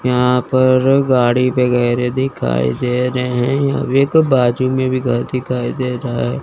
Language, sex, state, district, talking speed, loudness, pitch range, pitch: Hindi, male, Chandigarh, Chandigarh, 160 wpm, -16 LUFS, 125-130 Hz, 125 Hz